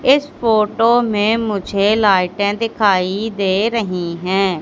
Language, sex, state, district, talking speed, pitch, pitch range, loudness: Hindi, female, Madhya Pradesh, Katni, 115 wpm, 210 Hz, 195-225 Hz, -16 LUFS